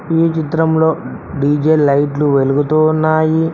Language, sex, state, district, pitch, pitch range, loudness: Telugu, male, Telangana, Mahabubabad, 155 Hz, 145-160 Hz, -14 LUFS